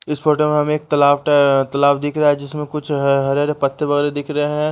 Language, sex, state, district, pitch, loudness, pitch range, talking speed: Hindi, male, Bihar, West Champaran, 145 Hz, -17 LUFS, 140-150 Hz, 255 wpm